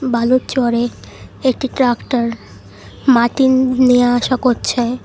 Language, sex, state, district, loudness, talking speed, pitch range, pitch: Bengali, female, West Bengal, Cooch Behar, -15 LUFS, 95 wpm, 240-260 Hz, 250 Hz